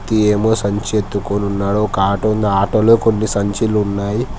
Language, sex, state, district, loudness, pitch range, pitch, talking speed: Telugu, male, Telangana, Hyderabad, -16 LUFS, 100-110 Hz, 105 Hz, 190 wpm